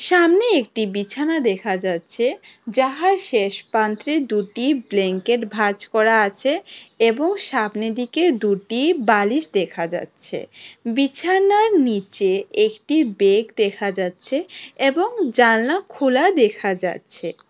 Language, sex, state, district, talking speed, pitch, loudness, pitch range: Bengali, female, Tripura, West Tripura, 105 wpm, 245 Hz, -19 LUFS, 210-345 Hz